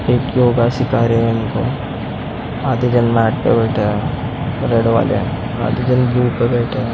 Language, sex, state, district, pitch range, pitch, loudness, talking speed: Hindi, male, Maharashtra, Mumbai Suburban, 115-125 Hz, 120 Hz, -16 LUFS, 165 wpm